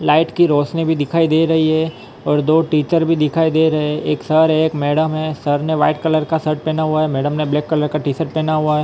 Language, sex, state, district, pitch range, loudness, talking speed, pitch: Hindi, male, Maharashtra, Mumbai Suburban, 150-160 Hz, -16 LUFS, 270 wpm, 155 Hz